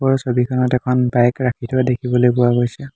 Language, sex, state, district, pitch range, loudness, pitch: Assamese, male, Assam, Hailakandi, 125-130 Hz, -17 LUFS, 125 Hz